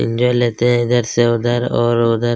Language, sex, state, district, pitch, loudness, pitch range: Hindi, male, Chhattisgarh, Kabirdham, 120 Hz, -16 LUFS, 115-120 Hz